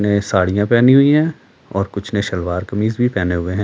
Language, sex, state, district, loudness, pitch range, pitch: Hindi, male, Delhi, New Delhi, -16 LUFS, 95-120 Hz, 100 Hz